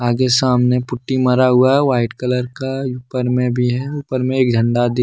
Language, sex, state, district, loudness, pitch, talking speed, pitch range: Hindi, male, Jharkhand, Deoghar, -17 LUFS, 125 Hz, 215 wpm, 125-130 Hz